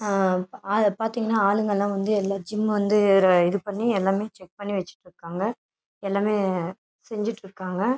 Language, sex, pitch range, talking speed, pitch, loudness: Tamil, female, 190-215 Hz, 130 wpm, 200 Hz, -24 LUFS